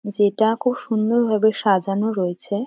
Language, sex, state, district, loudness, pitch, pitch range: Bengali, female, West Bengal, Dakshin Dinajpur, -20 LUFS, 215 Hz, 200-225 Hz